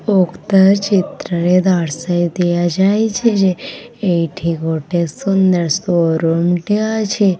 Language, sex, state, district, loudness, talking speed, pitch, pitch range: Odia, female, Odisha, Khordha, -15 LUFS, 95 wpm, 180 Hz, 170-195 Hz